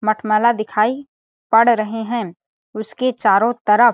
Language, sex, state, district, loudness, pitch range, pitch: Hindi, female, Chhattisgarh, Balrampur, -17 LUFS, 215-240 Hz, 225 Hz